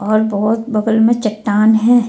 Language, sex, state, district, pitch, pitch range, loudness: Hindi, female, Jharkhand, Deoghar, 220 Hz, 215-225 Hz, -14 LUFS